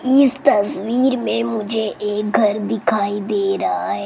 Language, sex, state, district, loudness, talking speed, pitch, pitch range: Hindi, female, Rajasthan, Jaipur, -18 LUFS, 145 wpm, 215 Hz, 205-230 Hz